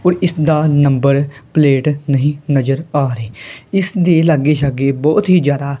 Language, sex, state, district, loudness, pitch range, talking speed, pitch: Punjabi, female, Punjab, Kapurthala, -14 LUFS, 140-160 Hz, 145 wpm, 145 Hz